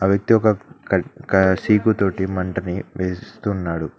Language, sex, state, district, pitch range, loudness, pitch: Telugu, male, Telangana, Mahabubabad, 95-105 Hz, -20 LUFS, 95 Hz